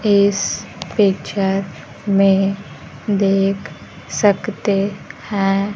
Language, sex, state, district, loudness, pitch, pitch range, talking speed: Hindi, female, Bihar, Kaimur, -18 LUFS, 195 Hz, 185-200 Hz, 65 wpm